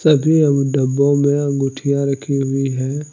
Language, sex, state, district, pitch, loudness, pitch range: Hindi, male, Jharkhand, Deoghar, 140 Hz, -17 LUFS, 135-145 Hz